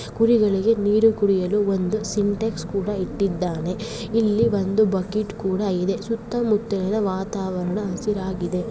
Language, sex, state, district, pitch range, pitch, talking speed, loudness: Kannada, female, Karnataka, Bellary, 190-215 Hz, 205 Hz, 110 wpm, -22 LUFS